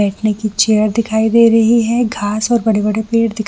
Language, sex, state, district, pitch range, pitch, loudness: Hindi, female, Chhattisgarh, Bilaspur, 215-230 Hz, 220 Hz, -14 LUFS